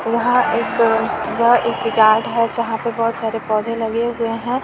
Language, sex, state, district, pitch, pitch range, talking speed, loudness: Hindi, female, Bihar, East Champaran, 230 Hz, 225-235 Hz, 180 wpm, -17 LUFS